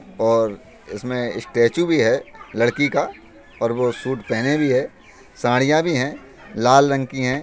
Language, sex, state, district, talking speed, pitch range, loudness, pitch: Hindi, male, Uttar Pradesh, Budaun, 145 wpm, 120-140 Hz, -20 LUFS, 130 Hz